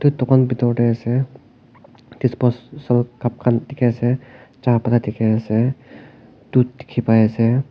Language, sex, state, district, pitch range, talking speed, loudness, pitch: Nagamese, male, Nagaland, Kohima, 120-130 Hz, 100 wpm, -19 LUFS, 120 Hz